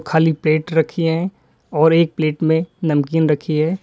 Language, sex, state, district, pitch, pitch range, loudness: Hindi, male, Uttar Pradesh, Lalitpur, 160 Hz, 155-165 Hz, -18 LUFS